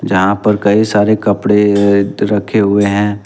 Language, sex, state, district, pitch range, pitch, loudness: Hindi, male, Jharkhand, Ranchi, 100-105 Hz, 100 Hz, -12 LUFS